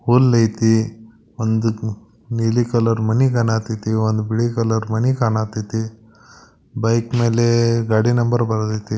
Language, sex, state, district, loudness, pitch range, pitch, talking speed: Kannada, male, Karnataka, Belgaum, -18 LUFS, 110-115 Hz, 115 Hz, 115 wpm